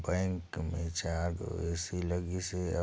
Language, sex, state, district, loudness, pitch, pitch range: Chhattisgarhi, male, Chhattisgarh, Sarguja, -35 LUFS, 85 Hz, 85-90 Hz